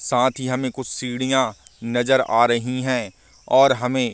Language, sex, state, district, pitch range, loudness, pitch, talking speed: Hindi, male, Bihar, Vaishali, 120-130 Hz, -20 LUFS, 125 Hz, 175 wpm